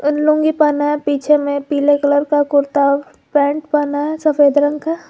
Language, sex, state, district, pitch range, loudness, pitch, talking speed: Hindi, female, Jharkhand, Garhwa, 285-300 Hz, -15 LUFS, 290 Hz, 175 wpm